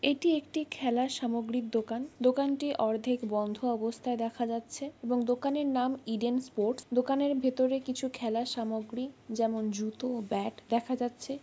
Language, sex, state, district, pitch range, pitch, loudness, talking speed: Bengali, female, West Bengal, Kolkata, 230-265 Hz, 245 Hz, -32 LUFS, 145 wpm